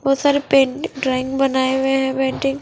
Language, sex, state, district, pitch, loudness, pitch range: Hindi, female, Punjab, Fazilka, 270 Hz, -18 LUFS, 265-275 Hz